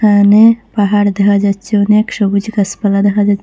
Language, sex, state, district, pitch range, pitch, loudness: Bengali, female, Assam, Hailakandi, 200-210 Hz, 205 Hz, -11 LUFS